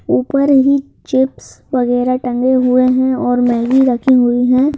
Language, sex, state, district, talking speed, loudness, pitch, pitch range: Hindi, male, Madhya Pradesh, Bhopal, 150 wpm, -13 LUFS, 255 Hz, 245-265 Hz